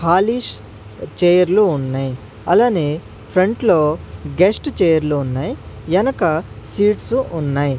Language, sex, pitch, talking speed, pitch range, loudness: Telugu, male, 165 Hz, 90 wpm, 140-200 Hz, -17 LUFS